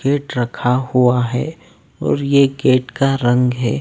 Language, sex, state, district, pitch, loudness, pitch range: Hindi, male, Delhi, New Delhi, 130 Hz, -16 LUFS, 125-140 Hz